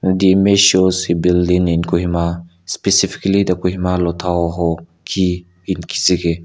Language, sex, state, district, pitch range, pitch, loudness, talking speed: English, male, Nagaland, Kohima, 85-90 Hz, 90 Hz, -16 LUFS, 130 wpm